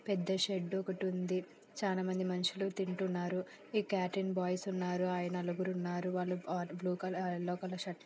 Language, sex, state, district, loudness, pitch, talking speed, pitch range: Telugu, female, Andhra Pradesh, Anantapur, -37 LUFS, 185 Hz, 180 wpm, 180-190 Hz